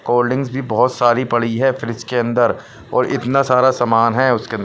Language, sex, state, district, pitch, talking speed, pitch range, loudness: Hindi, male, Punjab, Pathankot, 120 Hz, 205 wpm, 115-130 Hz, -16 LUFS